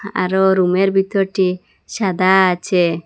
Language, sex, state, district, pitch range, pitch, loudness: Bengali, female, Assam, Hailakandi, 185-195 Hz, 190 Hz, -16 LUFS